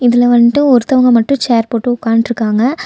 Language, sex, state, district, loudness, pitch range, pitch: Tamil, female, Tamil Nadu, Nilgiris, -11 LUFS, 230-250 Hz, 240 Hz